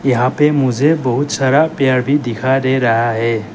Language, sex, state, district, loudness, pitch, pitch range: Hindi, male, Arunachal Pradesh, Lower Dibang Valley, -14 LUFS, 130 Hz, 120-140 Hz